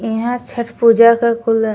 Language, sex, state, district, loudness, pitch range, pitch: Bhojpuri, female, Uttar Pradesh, Ghazipur, -14 LUFS, 225-235 Hz, 230 Hz